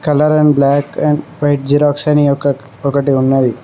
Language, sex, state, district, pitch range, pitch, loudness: Telugu, male, Telangana, Mahabubabad, 140-150 Hz, 145 Hz, -13 LUFS